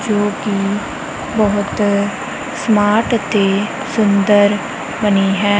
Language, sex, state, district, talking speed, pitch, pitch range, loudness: Punjabi, female, Punjab, Kapurthala, 85 wpm, 205 Hz, 205-220 Hz, -16 LUFS